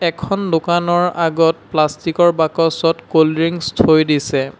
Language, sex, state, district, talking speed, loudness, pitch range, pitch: Assamese, male, Assam, Sonitpur, 130 wpm, -16 LUFS, 155-175 Hz, 165 Hz